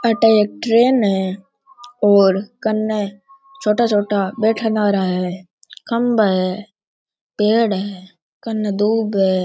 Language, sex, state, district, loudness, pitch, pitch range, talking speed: Rajasthani, male, Rajasthan, Churu, -17 LUFS, 210 Hz, 195-225 Hz, 115 wpm